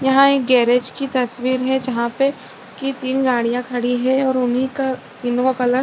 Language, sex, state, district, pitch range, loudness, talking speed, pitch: Hindi, female, Chhattisgarh, Balrampur, 245-265 Hz, -18 LUFS, 205 wpm, 255 Hz